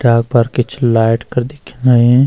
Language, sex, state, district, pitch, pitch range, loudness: Garhwali, male, Uttarakhand, Uttarkashi, 120 Hz, 115-125 Hz, -13 LUFS